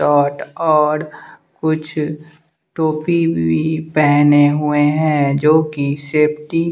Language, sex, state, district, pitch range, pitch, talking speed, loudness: Hindi, male, Bihar, West Champaran, 145-160 Hz, 155 Hz, 90 wpm, -16 LUFS